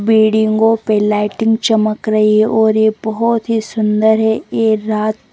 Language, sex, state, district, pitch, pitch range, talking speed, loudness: Hindi, female, Chandigarh, Chandigarh, 220 Hz, 215-220 Hz, 160 wpm, -14 LUFS